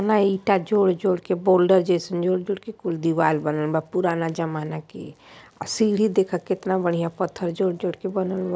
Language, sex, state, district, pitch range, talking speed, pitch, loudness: Bhojpuri, female, Uttar Pradesh, Ghazipur, 170-195 Hz, 175 wpm, 185 Hz, -23 LUFS